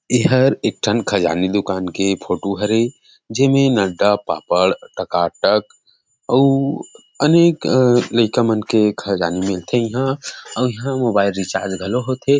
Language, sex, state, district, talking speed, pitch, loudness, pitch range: Chhattisgarhi, male, Chhattisgarh, Rajnandgaon, 125 wpm, 115 Hz, -17 LUFS, 100-130 Hz